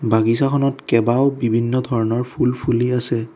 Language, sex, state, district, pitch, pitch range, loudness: Assamese, male, Assam, Kamrup Metropolitan, 120 Hz, 115-130 Hz, -18 LUFS